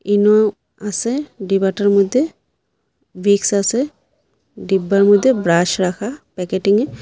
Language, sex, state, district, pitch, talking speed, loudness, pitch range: Bengali, female, Assam, Hailakandi, 200 Hz, 95 wpm, -16 LUFS, 195-225 Hz